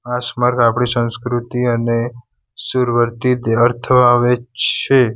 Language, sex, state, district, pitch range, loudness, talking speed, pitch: Gujarati, male, Gujarat, Valsad, 120-125 Hz, -16 LUFS, 80 wpm, 120 Hz